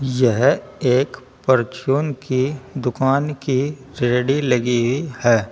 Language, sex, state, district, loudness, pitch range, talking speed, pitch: Hindi, male, Uttar Pradesh, Saharanpur, -19 LUFS, 125-140 Hz, 100 wpm, 130 Hz